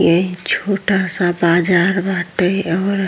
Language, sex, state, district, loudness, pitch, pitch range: Bhojpuri, female, Uttar Pradesh, Ghazipur, -16 LUFS, 185 Hz, 175-195 Hz